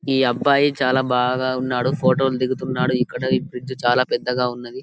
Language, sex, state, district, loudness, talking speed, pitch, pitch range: Telugu, male, Telangana, Karimnagar, -20 LUFS, 160 wpm, 130 Hz, 125-130 Hz